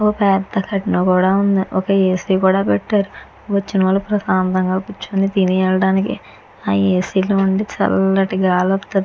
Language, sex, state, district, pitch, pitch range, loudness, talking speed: Telugu, female, Andhra Pradesh, Chittoor, 190 Hz, 185-195 Hz, -17 LUFS, 155 wpm